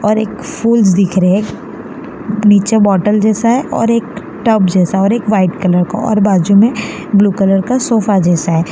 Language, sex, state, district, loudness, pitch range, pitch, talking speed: Hindi, female, Gujarat, Valsad, -12 LUFS, 195-225 Hz, 205 Hz, 185 wpm